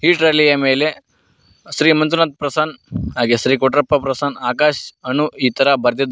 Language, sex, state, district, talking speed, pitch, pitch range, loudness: Kannada, male, Karnataka, Koppal, 155 wpm, 145 Hz, 135-155 Hz, -16 LUFS